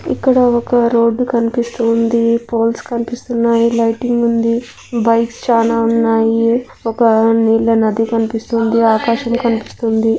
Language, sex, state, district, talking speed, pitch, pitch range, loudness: Telugu, female, Andhra Pradesh, Anantapur, 105 wpm, 230 Hz, 225-235 Hz, -14 LUFS